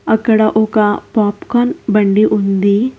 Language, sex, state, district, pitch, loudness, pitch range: Telugu, female, Telangana, Hyderabad, 215 Hz, -13 LUFS, 205-220 Hz